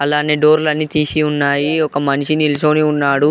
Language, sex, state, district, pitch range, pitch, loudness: Telugu, male, Andhra Pradesh, Guntur, 145-155 Hz, 150 Hz, -15 LUFS